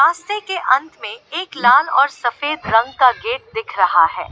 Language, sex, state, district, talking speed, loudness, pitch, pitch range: Hindi, female, Uttar Pradesh, Lalitpur, 195 wpm, -17 LUFS, 300 Hz, 255-375 Hz